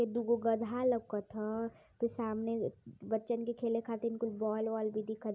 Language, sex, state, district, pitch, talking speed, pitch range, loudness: Hindi, female, Uttar Pradesh, Varanasi, 225 Hz, 190 wpm, 220-235 Hz, -36 LUFS